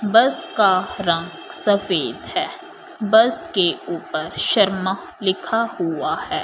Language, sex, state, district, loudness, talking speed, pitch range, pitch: Hindi, female, Punjab, Fazilka, -20 LUFS, 110 wpm, 190-230 Hz, 205 Hz